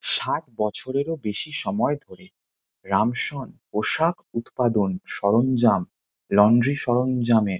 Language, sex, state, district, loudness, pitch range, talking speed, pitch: Bengali, male, West Bengal, Kolkata, -23 LUFS, 105-140 Hz, 85 wpm, 120 Hz